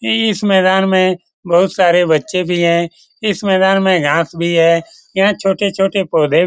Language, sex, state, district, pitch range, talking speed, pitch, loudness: Hindi, male, Bihar, Lakhisarai, 170-195 Hz, 175 wpm, 185 Hz, -14 LUFS